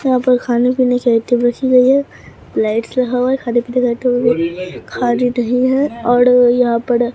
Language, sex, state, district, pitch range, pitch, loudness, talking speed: Hindi, female, Bihar, Katihar, 240-255 Hz, 245 Hz, -14 LUFS, 200 wpm